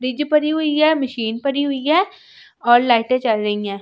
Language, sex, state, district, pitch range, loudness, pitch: Hindi, female, Delhi, New Delhi, 230-300 Hz, -18 LUFS, 265 Hz